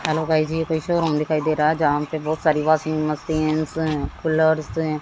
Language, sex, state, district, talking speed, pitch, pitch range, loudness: Hindi, female, Haryana, Jhajjar, 215 wpm, 155 Hz, 155-160 Hz, -21 LUFS